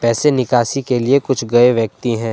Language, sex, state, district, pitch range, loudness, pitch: Hindi, male, Jharkhand, Deoghar, 115-135 Hz, -15 LUFS, 120 Hz